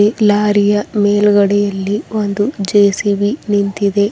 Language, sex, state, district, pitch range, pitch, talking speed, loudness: Kannada, female, Karnataka, Bidar, 200-210 Hz, 205 Hz, 100 wpm, -14 LUFS